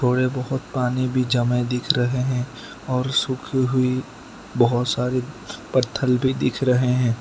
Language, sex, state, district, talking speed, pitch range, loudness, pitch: Hindi, male, Gujarat, Valsad, 150 wpm, 125-130 Hz, -22 LUFS, 125 Hz